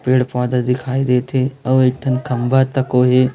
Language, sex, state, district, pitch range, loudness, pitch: Hindi, female, Chhattisgarh, Raipur, 125-130 Hz, -17 LUFS, 130 Hz